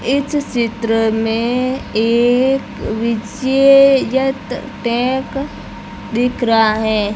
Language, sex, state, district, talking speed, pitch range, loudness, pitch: Hindi, female, Rajasthan, Barmer, 75 wpm, 225-265 Hz, -16 LUFS, 240 Hz